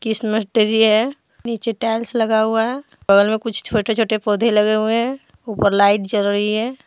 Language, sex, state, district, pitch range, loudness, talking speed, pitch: Hindi, female, Jharkhand, Deoghar, 215-230 Hz, -18 LUFS, 190 wpm, 220 Hz